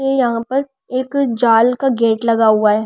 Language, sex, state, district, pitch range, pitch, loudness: Hindi, female, Delhi, New Delhi, 225-270 Hz, 240 Hz, -15 LUFS